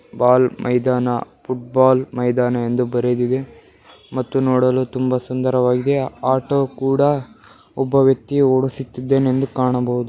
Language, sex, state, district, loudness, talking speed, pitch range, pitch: Kannada, male, Karnataka, Bellary, -18 LUFS, 115 wpm, 125-135 Hz, 130 Hz